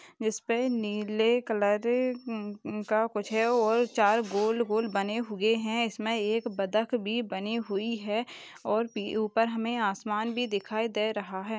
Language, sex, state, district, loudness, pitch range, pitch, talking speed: Hindi, female, Chhattisgarh, Jashpur, -29 LUFS, 210-235 Hz, 220 Hz, 150 wpm